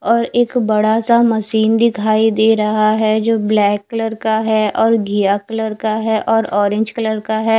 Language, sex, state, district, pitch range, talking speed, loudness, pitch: Hindi, female, Odisha, Khordha, 215-225 Hz, 190 wpm, -15 LUFS, 220 Hz